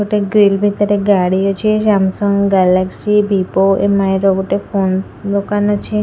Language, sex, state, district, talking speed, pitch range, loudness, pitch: Odia, female, Odisha, Khordha, 150 wpm, 195-205 Hz, -14 LUFS, 200 Hz